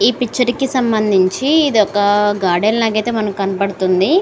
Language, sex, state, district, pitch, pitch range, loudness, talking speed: Telugu, female, Andhra Pradesh, Srikakulam, 215 Hz, 195-245 Hz, -15 LUFS, 140 wpm